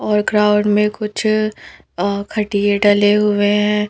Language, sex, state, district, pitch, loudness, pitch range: Hindi, female, Madhya Pradesh, Bhopal, 210 Hz, -16 LUFS, 205-210 Hz